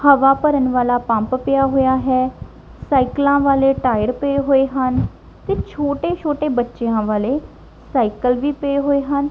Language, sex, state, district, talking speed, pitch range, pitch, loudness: Punjabi, female, Punjab, Kapurthala, 150 wpm, 255-280 Hz, 270 Hz, -18 LUFS